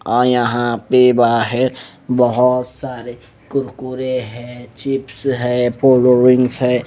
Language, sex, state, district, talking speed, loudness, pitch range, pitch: Hindi, male, Punjab, Pathankot, 105 wpm, -15 LUFS, 120-130 Hz, 125 Hz